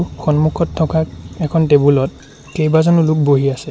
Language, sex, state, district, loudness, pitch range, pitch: Assamese, male, Assam, Sonitpur, -15 LUFS, 145-160 Hz, 155 Hz